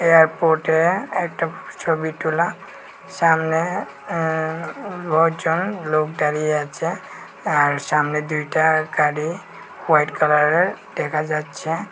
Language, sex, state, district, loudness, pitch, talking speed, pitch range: Bengali, male, Tripura, West Tripura, -20 LUFS, 160 Hz, 90 wpm, 150-165 Hz